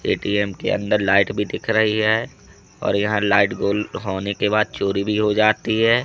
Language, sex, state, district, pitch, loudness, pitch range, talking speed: Hindi, male, Madhya Pradesh, Katni, 105 Hz, -20 LUFS, 100-110 Hz, 200 wpm